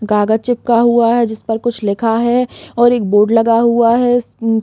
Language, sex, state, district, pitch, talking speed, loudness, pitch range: Hindi, female, Chhattisgarh, Bastar, 230 Hz, 195 wpm, -13 LUFS, 225-240 Hz